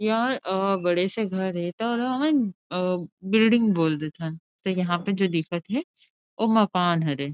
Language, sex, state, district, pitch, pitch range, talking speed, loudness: Chhattisgarhi, female, Chhattisgarh, Rajnandgaon, 190 Hz, 175-220 Hz, 170 wpm, -25 LUFS